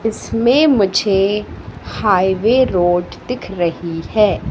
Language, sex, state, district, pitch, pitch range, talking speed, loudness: Hindi, female, Madhya Pradesh, Katni, 205 Hz, 180-230 Hz, 95 wpm, -16 LUFS